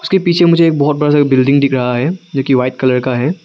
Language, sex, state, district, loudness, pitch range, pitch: Hindi, male, Arunachal Pradesh, Lower Dibang Valley, -12 LUFS, 130-165 Hz, 140 Hz